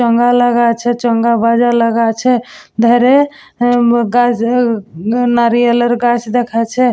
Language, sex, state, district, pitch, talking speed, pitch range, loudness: Bengali, female, West Bengal, Dakshin Dinajpur, 240 Hz, 105 wpm, 230-245 Hz, -12 LUFS